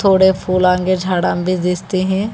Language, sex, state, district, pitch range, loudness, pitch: Hindi, female, Telangana, Hyderabad, 180-190 Hz, -16 LUFS, 185 Hz